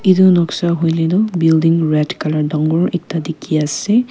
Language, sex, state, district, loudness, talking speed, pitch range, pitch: Nagamese, female, Nagaland, Kohima, -15 LUFS, 175 wpm, 155-185 Hz, 165 Hz